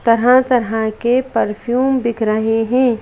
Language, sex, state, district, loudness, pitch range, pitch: Hindi, female, Madhya Pradesh, Bhopal, -16 LUFS, 225-250 Hz, 235 Hz